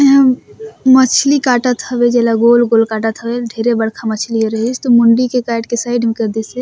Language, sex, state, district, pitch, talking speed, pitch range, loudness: Surgujia, female, Chhattisgarh, Sarguja, 235 Hz, 210 wpm, 225-250 Hz, -13 LUFS